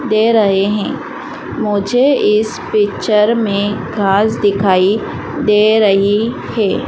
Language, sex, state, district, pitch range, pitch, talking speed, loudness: Hindi, female, Madhya Pradesh, Dhar, 200-225 Hz, 210 Hz, 105 wpm, -14 LUFS